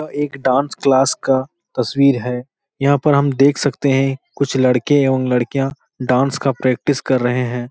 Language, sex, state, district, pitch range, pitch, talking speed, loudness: Hindi, male, Bihar, Supaul, 130-140 Hz, 135 Hz, 180 wpm, -17 LUFS